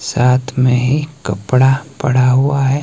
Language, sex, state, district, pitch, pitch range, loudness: Hindi, male, Himachal Pradesh, Shimla, 135 Hz, 125-140 Hz, -14 LUFS